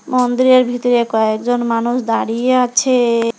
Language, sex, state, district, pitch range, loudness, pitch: Bengali, female, West Bengal, Alipurduar, 230-255 Hz, -15 LUFS, 245 Hz